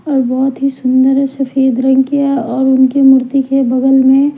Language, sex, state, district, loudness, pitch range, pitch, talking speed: Hindi, female, Bihar, Patna, -11 LUFS, 260-275 Hz, 265 Hz, 190 wpm